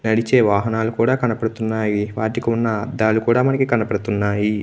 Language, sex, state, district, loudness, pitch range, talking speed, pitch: Telugu, male, Andhra Pradesh, Chittoor, -19 LUFS, 105-115 Hz, 130 wpm, 110 Hz